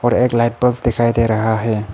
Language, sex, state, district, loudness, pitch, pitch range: Hindi, male, Arunachal Pradesh, Papum Pare, -16 LUFS, 115 Hz, 110-120 Hz